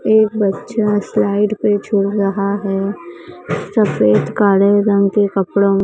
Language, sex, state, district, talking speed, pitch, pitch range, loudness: Hindi, male, Maharashtra, Mumbai Suburban, 125 wpm, 200 Hz, 195-210 Hz, -15 LUFS